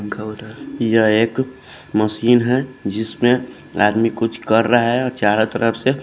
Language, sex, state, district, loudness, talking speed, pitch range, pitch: Hindi, male, Haryana, Jhajjar, -18 LUFS, 140 wpm, 110-120 Hz, 115 Hz